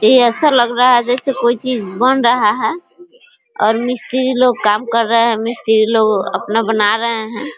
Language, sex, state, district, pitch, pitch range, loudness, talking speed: Hindi, female, Bihar, East Champaran, 235 Hz, 220-255 Hz, -14 LUFS, 200 wpm